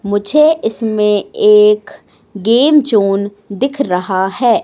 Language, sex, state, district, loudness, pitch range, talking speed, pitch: Hindi, female, Madhya Pradesh, Katni, -12 LUFS, 200-280 Hz, 105 wpm, 220 Hz